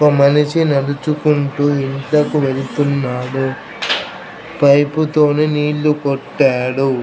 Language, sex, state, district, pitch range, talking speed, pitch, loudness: Telugu, male, Andhra Pradesh, Krishna, 135-150 Hz, 75 wpm, 145 Hz, -16 LUFS